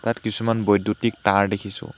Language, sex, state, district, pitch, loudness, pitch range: Assamese, male, Assam, Hailakandi, 105 Hz, -22 LUFS, 100-115 Hz